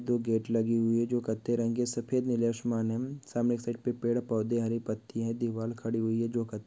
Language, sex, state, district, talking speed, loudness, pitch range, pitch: Hindi, male, Chhattisgarh, Balrampur, 235 wpm, -31 LUFS, 115-120 Hz, 115 Hz